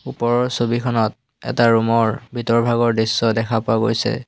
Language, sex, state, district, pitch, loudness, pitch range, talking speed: Assamese, male, Assam, Hailakandi, 115 Hz, -18 LUFS, 115-125 Hz, 140 wpm